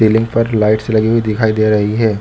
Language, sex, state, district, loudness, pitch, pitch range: Hindi, male, Chhattisgarh, Bilaspur, -14 LUFS, 110 Hz, 110-115 Hz